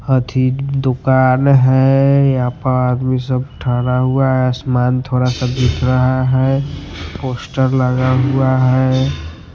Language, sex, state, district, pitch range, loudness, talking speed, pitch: Hindi, male, Bihar, West Champaran, 125-130 Hz, -15 LUFS, 125 wpm, 130 Hz